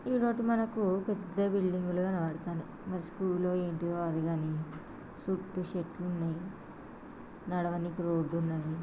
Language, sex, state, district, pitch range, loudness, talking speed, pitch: Telugu, female, Andhra Pradesh, Srikakulam, 165-190 Hz, -34 LUFS, 115 wpm, 180 Hz